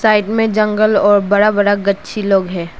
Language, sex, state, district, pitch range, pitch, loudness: Hindi, female, Arunachal Pradesh, Lower Dibang Valley, 200-215 Hz, 205 Hz, -14 LUFS